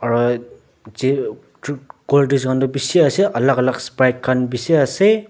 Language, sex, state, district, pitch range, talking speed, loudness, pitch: Nagamese, male, Nagaland, Dimapur, 125-145 Hz, 135 wpm, -17 LUFS, 130 Hz